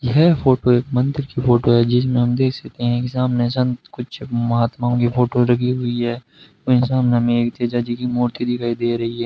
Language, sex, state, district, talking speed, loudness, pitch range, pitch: Hindi, male, Rajasthan, Bikaner, 215 wpm, -18 LUFS, 120-125 Hz, 120 Hz